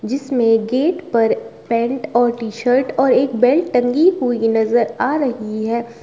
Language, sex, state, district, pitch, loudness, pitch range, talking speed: Hindi, female, Uttar Pradesh, Shamli, 245 Hz, -17 LUFS, 230-265 Hz, 150 wpm